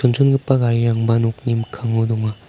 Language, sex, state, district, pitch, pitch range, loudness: Garo, male, Meghalaya, South Garo Hills, 115 Hz, 115-125 Hz, -18 LUFS